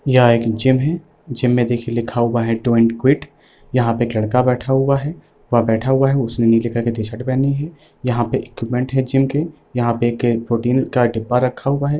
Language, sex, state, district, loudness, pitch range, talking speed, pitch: Hindi, male, Bihar, Sitamarhi, -18 LUFS, 120-135 Hz, 225 wpm, 125 Hz